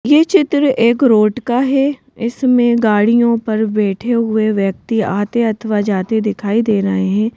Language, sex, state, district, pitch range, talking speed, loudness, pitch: Hindi, female, Madhya Pradesh, Bhopal, 210-240 Hz, 155 wpm, -14 LUFS, 225 Hz